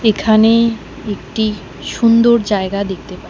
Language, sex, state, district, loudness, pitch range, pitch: Bengali, female, West Bengal, Alipurduar, -14 LUFS, 205-230 Hz, 220 Hz